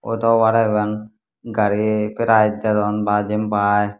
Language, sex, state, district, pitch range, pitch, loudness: Chakma, male, Tripura, Dhalai, 105-110 Hz, 105 Hz, -18 LUFS